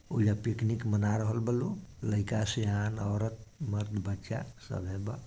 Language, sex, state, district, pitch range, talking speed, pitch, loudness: Bhojpuri, male, Bihar, Gopalganj, 105-115 Hz, 150 wpm, 110 Hz, -33 LUFS